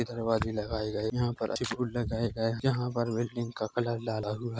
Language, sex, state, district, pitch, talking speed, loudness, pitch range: Hindi, male, Chhattisgarh, Korba, 115 Hz, 145 wpm, -32 LUFS, 110-120 Hz